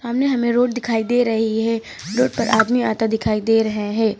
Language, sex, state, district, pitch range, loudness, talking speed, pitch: Hindi, female, Uttar Pradesh, Lucknow, 220-245 Hz, -19 LUFS, 230 wpm, 225 Hz